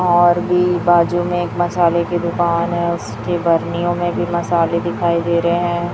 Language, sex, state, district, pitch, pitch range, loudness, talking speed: Hindi, female, Chhattisgarh, Raipur, 175 Hz, 170-175 Hz, -17 LUFS, 180 wpm